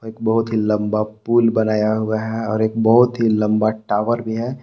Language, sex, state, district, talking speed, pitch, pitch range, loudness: Hindi, male, Jharkhand, Palamu, 195 wpm, 110 Hz, 110-115 Hz, -18 LUFS